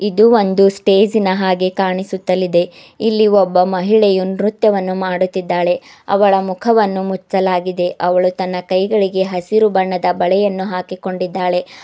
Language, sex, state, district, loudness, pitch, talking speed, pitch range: Kannada, female, Karnataka, Bidar, -15 LUFS, 190 Hz, 100 wpm, 185-200 Hz